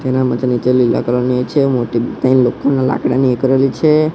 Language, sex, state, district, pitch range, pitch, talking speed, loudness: Gujarati, male, Gujarat, Gandhinagar, 125-135 Hz, 130 Hz, 215 wpm, -14 LUFS